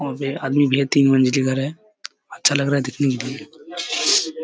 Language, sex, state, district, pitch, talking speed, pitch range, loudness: Hindi, male, Bihar, Kishanganj, 140 Hz, 215 wpm, 135-150 Hz, -19 LUFS